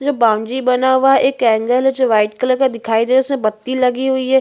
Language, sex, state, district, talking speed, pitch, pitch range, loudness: Hindi, female, Chhattisgarh, Bastar, 260 wpm, 255 Hz, 230-265 Hz, -15 LUFS